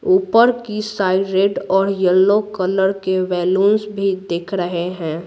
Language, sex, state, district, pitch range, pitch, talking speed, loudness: Hindi, female, Bihar, Patna, 185-210 Hz, 195 Hz, 150 wpm, -17 LUFS